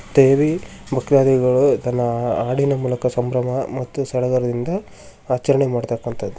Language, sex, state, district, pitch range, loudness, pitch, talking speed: Kannada, male, Karnataka, Shimoga, 125-140 Hz, -19 LUFS, 125 Hz, 85 wpm